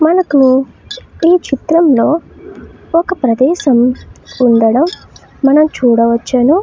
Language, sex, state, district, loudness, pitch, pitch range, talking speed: Telugu, female, Karnataka, Bellary, -11 LUFS, 275 Hz, 250-330 Hz, 70 wpm